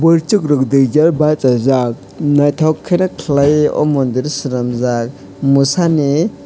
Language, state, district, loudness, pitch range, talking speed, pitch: Kokborok, Tripura, West Tripura, -14 LUFS, 130-155 Hz, 120 wpm, 145 Hz